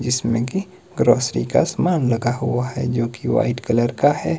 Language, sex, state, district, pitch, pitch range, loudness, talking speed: Hindi, male, Himachal Pradesh, Shimla, 120 Hz, 115-130 Hz, -20 LUFS, 190 wpm